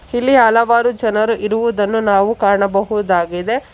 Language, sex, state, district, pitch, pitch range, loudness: Kannada, female, Karnataka, Bangalore, 220 Hz, 200-235 Hz, -15 LUFS